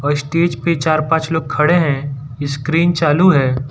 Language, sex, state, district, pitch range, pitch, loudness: Hindi, male, Gujarat, Valsad, 140-165 Hz, 155 Hz, -15 LUFS